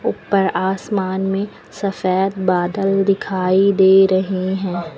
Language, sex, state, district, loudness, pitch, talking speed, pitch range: Hindi, female, Uttar Pradesh, Lucknow, -17 LUFS, 190 Hz, 110 wpm, 185-195 Hz